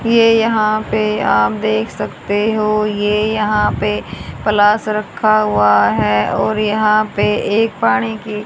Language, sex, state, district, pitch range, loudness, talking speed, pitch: Hindi, female, Haryana, Charkhi Dadri, 200-215 Hz, -15 LUFS, 140 wpm, 210 Hz